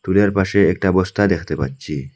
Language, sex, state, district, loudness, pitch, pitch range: Bengali, male, Assam, Hailakandi, -18 LUFS, 95 Hz, 75-100 Hz